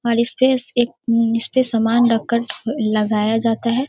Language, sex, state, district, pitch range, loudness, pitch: Hindi, female, Bihar, Darbhanga, 225-240 Hz, -18 LUFS, 235 Hz